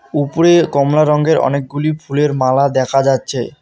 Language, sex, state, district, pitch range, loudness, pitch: Bengali, male, West Bengal, Alipurduar, 135-150 Hz, -14 LUFS, 140 Hz